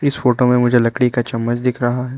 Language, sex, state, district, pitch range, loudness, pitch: Hindi, male, Arunachal Pradesh, Lower Dibang Valley, 120-125 Hz, -16 LUFS, 125 Hz